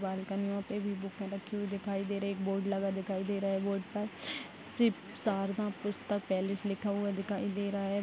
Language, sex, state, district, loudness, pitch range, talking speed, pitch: Hindi, female, Bihar, Vaishali, -35 LUFS, 195-205 Hz, 210 wpm, 200 Hz